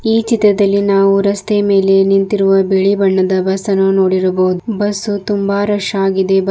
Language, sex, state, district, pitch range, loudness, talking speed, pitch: Kannada, female, Karnataka, Bidar, 195-205 Hz, -13 LUFS, 155 wpm, 195 Hz